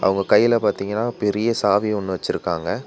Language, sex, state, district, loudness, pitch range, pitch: Tamil, male, Tamil Nadu, Nilgiris, -20 LUFS, 100-115 Hz, 105 Hz